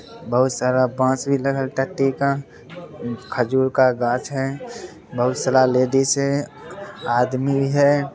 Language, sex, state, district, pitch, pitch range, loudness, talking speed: Angika, male, Bihar, Begusarai, 135 Hz, 130-140 Hz, -20 LUFS, 125 wpm